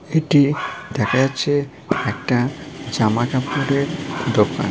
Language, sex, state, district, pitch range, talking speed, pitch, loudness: Bengali, male, West Bengal, Paschim Medinipur, 130-145 Hz, 90 wpm, 140 Hz, -20 LUFS